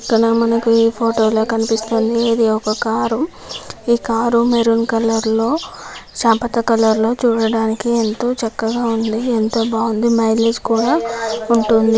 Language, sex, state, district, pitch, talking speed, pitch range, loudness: Telugu, female, Andhra Pradesh, Guntur, 230 Hz, 130 wpm, 225-235 Hz, -16 LUFS